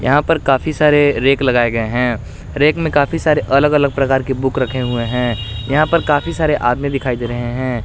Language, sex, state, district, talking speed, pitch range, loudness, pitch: Hindi, male, Jharkhand, Garhwa, 220 wpm, 120-150 Hz, -15 LUFS, 135 Hz